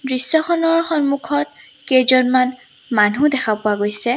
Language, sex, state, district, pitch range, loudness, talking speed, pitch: Assamese, female, Assam, Sonitpur, 240-295 Hz, -17 LUFS, 100 wpm, 260 Hz